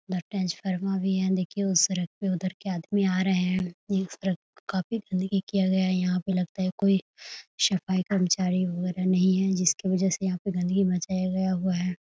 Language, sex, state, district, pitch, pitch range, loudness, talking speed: Hindi, female, Bihar, Muzaffarpur, 185 Hz, 180-190 Hz, -27 LUFS, 205 wpm